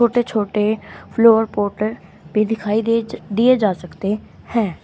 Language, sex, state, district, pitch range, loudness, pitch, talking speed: Hindi, female, Haryana, Rohtak, 205-230 Hz, -19 LUFS, 215 Hz, 135 wpm